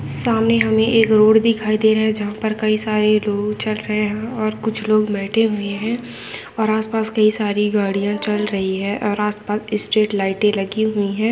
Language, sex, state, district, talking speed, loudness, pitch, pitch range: Hindi, female, Telangana, Nalgonda, 185 wpm, -18 LUFS, 215 Hz, 210-220 Hz